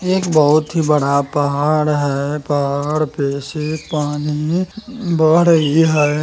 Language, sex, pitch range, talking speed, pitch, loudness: Maithili, male, 145-160 Hz, 125 wpm, 150 Hz, -16 LUFS